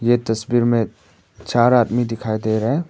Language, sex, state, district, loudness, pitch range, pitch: Hindi, male, Arunachal Pradesh, Papum Pare, -19 LUFS, 110-120 Hz, 115 Hz